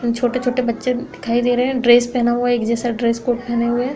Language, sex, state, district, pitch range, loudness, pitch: Hindi, female, Uttar Pradesh, Hamirpur, 235-250 Hz, -18 LUFS, 240 Hz